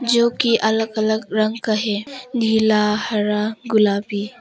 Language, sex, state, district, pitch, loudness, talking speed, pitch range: Hindi, female, Arunachal Pradesh, Papum Pare, 220 Hz, -19 LUFS, 135 wpm, 210-230 Hz